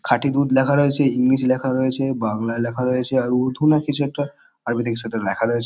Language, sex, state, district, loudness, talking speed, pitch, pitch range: Bengali, male, West Bengal, Kolkata, -20 LUFS, 210 wpm, 130 Hz, 120-140 Hz